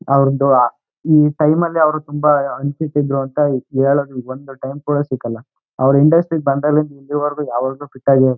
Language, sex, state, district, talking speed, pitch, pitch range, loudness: Kannada, male, Karnataka, Chamarajanagar, 165 wpm, 140 Hz, 135-150 Hz, -16 LUFS